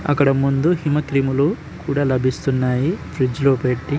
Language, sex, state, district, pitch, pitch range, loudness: Telugu, male, Andhra Pradesh, Srikakulam, 135 Hz, 130-145 Hz, -19 LUFS